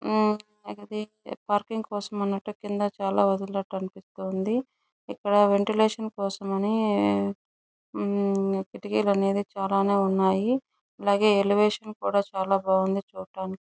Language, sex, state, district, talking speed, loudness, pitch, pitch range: Telugu, female, Andhra Pradesh, Chittoor, 115 wpm, -26 LUFS, 200 Hz, 195-210 Hz